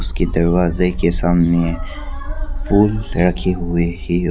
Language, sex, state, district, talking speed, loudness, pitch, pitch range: Hindi, male, Arunachal Pradesh, Papum Pare, 110 wpm, -17 LUFS, 85 Hz, 85-90 Hz